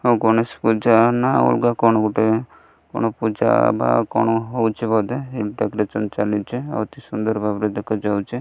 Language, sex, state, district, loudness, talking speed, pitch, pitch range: Odia, male, Odisha, Malkangiri, -19 LUFS, 105 wpm, 110 Hz, 105-120 Hz